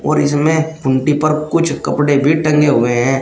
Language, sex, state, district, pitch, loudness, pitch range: Hindi, male, Uttar Pradesh, Shamli, 150 Hz, -14 LUFS, 135-155 Hz